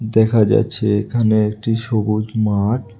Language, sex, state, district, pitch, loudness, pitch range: Bengali, male, Tripura, West Tripura, 110 Hz, -17 LUFS, 105-115 Hz